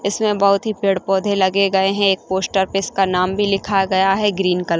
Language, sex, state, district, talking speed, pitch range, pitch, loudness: Hindi, female, Chhattisgarh, Rajnandgaon, 235 wpm, 190-200 Hz, 195 Hz, -17 LUFS